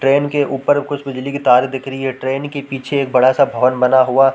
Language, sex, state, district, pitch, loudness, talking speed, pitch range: Hindi, male, Chhattisgarh, Korba, 135 Hz, -16 LUFS, 250 wpm, 130-140 Hz